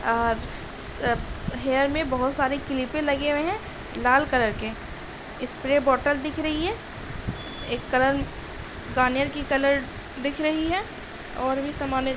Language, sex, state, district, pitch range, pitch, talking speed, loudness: Hindi, female, Bihar, Saharsa, 260-295 Hz, 275 Hz, 150 wpm, -25 LUFS